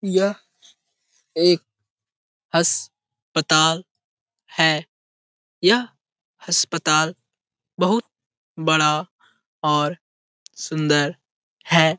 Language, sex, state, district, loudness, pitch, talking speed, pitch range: Hindi, male, Bihar, Jahanabad, -20 LUFS, 155 Hz, 55 wpm, 125-170 Hz